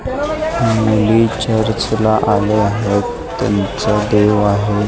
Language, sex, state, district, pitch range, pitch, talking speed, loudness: Marathi, male, Maharashtra, Mumbai Suburban, 105-110 Hz, 110 Hz, 100 wpm, -15 LUFS